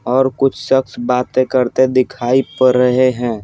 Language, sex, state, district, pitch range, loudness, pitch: Hindi, male, Bihar, Patna, 125-130 Hz, -15 LUFS, 130 Hz